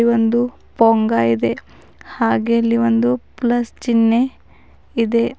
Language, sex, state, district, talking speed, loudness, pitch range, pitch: Kannada, female, Karnataka, Bidar, 100 wpm, -17 LUFS, 190-240 Hz, 230 Hz